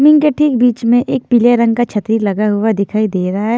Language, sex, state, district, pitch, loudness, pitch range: Hindi, female, Himachal Pradesh, Shimla, 230 Hz, -13 LUFS, 210-245 Hz